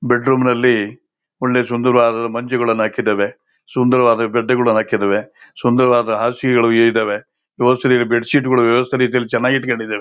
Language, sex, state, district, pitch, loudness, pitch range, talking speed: Kannada, male, Karnataka, Shimoga, 120 Hz, -16 LUFS, 115-125 Hz, 110 wpm